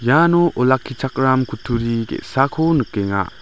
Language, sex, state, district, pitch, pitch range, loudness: Garo, male, Meghalaya, West Garo Hills, 130 Hz, 115-135 Hz, -18 LUFS